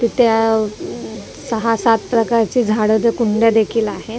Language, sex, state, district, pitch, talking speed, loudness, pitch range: Marathi, female, Maharashtra, Mumbai Suburban, 225 Hz, 155 wpm, -16 LUFS, 220-230 Hz